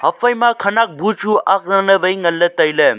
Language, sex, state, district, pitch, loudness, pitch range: Wancho, male, Arunachal Pradesh, Longding, 195 Hz, -15 LUFS, 185-225 Hz